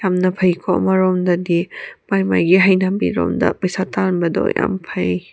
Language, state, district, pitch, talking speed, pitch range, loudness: Manipuri, Manipur, Imphal West, 185 Hz, 125 wpm, 175-190 Hz, -17 LUFS